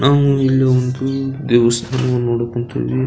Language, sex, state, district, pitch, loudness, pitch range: Kannada, male, Karnataka, Belgaum, 125 Hz, -16 LUFS, 120-135 Hz